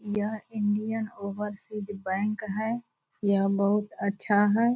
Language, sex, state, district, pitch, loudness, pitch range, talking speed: Hindi, female, Bihar, Purnia, 210 Hz, -26 LUFS, 200-220 Hz, 115 wpm